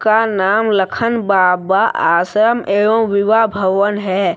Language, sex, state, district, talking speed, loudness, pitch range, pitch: Hindi, male, Jharkhand, Deoghar, 125 wpm, -14 LUFS, 190-220 Hz, 205 Hz